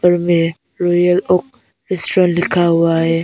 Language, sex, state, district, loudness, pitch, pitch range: Hindi, female, Arunachal Pradesh, Papum Pare, -15 LUFS, 175 Hz, 165-180 Hz